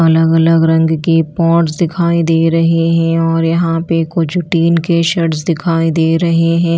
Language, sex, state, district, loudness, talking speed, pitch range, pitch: Hindi, female, Chhattisgarh, Raipur, -13 LUFS, 175 wpm, 165-170 Hz, 165 Hz